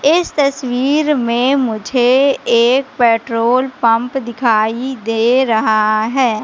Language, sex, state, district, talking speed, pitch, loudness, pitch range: Hindi, female, Madhya Pradesh, Katni, 105 wpm, 245 Hz, -14 LUFS, 230-265 Hz